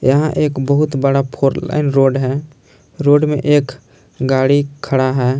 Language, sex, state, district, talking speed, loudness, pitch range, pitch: Hindi, male, Jharkhand, Palamu, 155 wpm, -15 LUFS, 135-145 Hz, 140 Hz